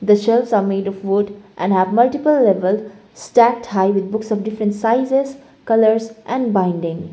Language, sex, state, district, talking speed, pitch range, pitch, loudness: English, female, Sikkim, Gangtok, 160 wpm, 195-235 Hz, 210 Hz, -17 LUFS